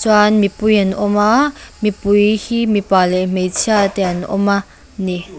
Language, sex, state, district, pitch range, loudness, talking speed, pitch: Mizo, female, Mizoram, Aizawl, 190-210 Hz, -15 LUFS, 165 wpm, 205 Hz